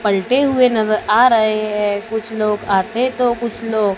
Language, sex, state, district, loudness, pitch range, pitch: Hindi, female, Maharashtra, Gondia, -16 LUFS, 210-240 Hz, 220 Hz